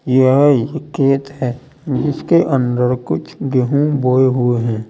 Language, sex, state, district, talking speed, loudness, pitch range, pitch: Hindi, male, Uttar Pradesh, Saharanpur, 135 wpm, -16 LUFS, 125-140 Hz, 130 Hz